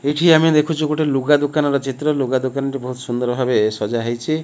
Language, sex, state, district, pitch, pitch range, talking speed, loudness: Odia, male, Odisha, Malkangiri, 140 Hz, 125-150 Hz, 190 wpm, -18 LUFS